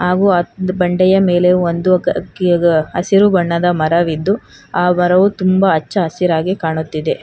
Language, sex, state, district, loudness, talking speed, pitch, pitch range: Kannada, female, Karnataka, Bangalore, -14 LUFS, 135 wpm, 180 Hz, 170-185 Hz